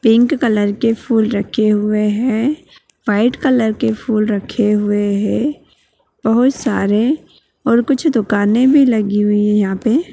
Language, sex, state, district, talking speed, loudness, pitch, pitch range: Magahi, female, Bihar, Gaya, 160 wpm, -15 LUFS, 225 Hz, 210-255 Hz